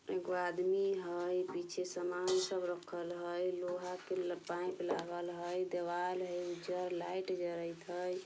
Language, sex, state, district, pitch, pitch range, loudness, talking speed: Bajjika, female, Bihar, Vaishali, 180 Hz, 175-185 Hz, -39 LUFS, 140 wpm